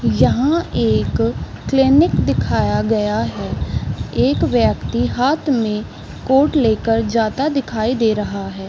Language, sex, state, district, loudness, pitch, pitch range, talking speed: Hindi, female, Chhattisgarh, Raigarh, -17 LUFS, 230 Hz, 215-275 Hz, 115 wpm